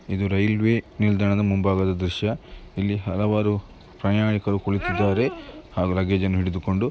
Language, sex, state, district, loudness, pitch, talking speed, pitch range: Kannada, male, Karnataka, Mysore, -23 LUFS, 100 Hz, 115 wpm, 95-105 Hz